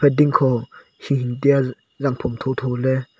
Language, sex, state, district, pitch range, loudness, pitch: Wancho, male, Arunachal Pradesh, Longding, 125-140 Hz, -20 LUFS, 130 Hz